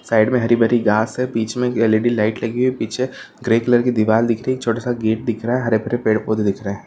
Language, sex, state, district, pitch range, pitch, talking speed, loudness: Hindi, male, Chhattisgarh, Bilaspur, 110-120 Hz, 115 Hz, 260 wpm, -18 LUFS